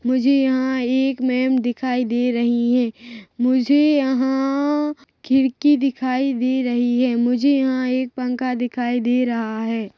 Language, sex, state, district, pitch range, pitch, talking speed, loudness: Hindi, female, Chhattisgarh, Rajnandgaon, 245-265 Hz, 255 Hz, 140 wpm, -19 LUFS